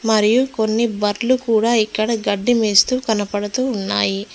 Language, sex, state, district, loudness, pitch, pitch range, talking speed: Telugu, female, Telangana, Mahabubabad, -18 LUFS, 220 Hz, 205-235 Hz, 125 wpm